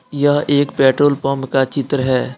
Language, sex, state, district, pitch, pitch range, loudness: Hindi, male, Jharkhand, Deoghar, 140 Hz, 135-145 Hz, -16 LUFS